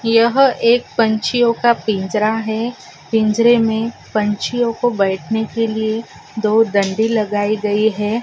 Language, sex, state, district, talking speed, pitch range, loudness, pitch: Hindi, female, Maharashtra, Pune, 130 wpm, 215-235 Hz, -17 LUFS, 220 Hz